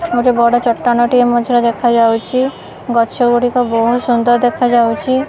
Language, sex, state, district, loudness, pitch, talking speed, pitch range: Odia, female, Odisha, Khordha, -13 LUFS, 240 Hz, 125 wpm, 235-245 Hz